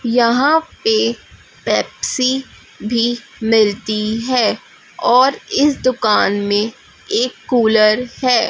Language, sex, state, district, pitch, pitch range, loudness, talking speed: Hindi, female, Chhattisgarh, Raipur, 235 Hz, 220-255 Hz, -16 LUFS, 90 wpm